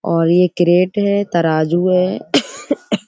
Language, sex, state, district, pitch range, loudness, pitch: Hindi, female, Uttar Pradesh, Budaun, 170-200 Hz, -15 LUFS, 180 Hz